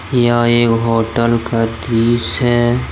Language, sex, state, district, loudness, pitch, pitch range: Hindi, male, Jharkhand, Deoghar, -14 LUFS, 115 Hz, 115-120 Hz